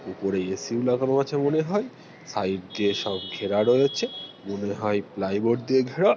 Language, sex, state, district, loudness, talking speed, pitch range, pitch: Bengali, male, West Bengal, North 24 Parganas, -25 LUFS, 165 wpm, 100-140 Hz, 120 Hz